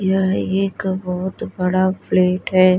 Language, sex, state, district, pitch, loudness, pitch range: Hindi, female, Bihar, Vaishali, 185 Hz, -19 LUFS, 185-190 Hz